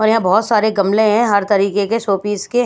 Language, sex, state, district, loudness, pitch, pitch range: Hindi, female, Bihar, Patna, -15 LUFS, 210 Hz, 200-220 Hz